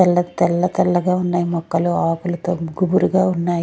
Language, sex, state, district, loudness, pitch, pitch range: Telugu, female, Andhra Pradesh, Sri Satya Sai, -19 LUFS, 175 Hz, 170-180 Hz